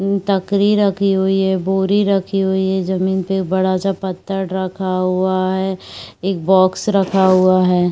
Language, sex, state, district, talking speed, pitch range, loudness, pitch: Chhattisgarhi, female, Chhattisgarh, Rajnandgaon, 160 wpm, 185-195 Hz, -16 LUFS, 190 Hz